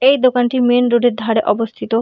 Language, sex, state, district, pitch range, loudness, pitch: Bengali, female, West Bengal, Purulia, 230-250 Hz, -15 LUFS, 245 Hz